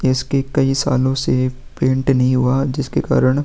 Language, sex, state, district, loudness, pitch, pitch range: Hindi, male, Uttar Pradesh, Jalaun, -17 LUFS, 130 Hz, 130-135 Hz